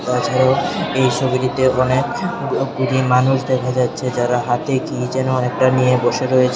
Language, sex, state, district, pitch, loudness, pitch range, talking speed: Bengali, male, Tripura, Unakoti, 130 Hz, -17 LUFS, 125-130 Hz, 145 wpm